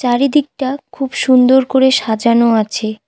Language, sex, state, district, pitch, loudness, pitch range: Bengali, female, West Bengal, Cooch Behar, 255 Hz, -13 LUFS, 235-265 Hz